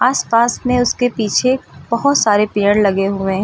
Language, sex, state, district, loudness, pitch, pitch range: Hindi, female, Uttar Pradesh, Lucknow, -15 LUFS, 230 Hz, 205-250 Hz